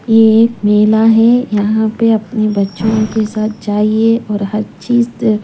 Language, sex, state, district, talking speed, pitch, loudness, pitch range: Hindi, female, Punjab, Pathankot, 175 wpm, 220 Hz, -12 LUFS, 210-225 Hz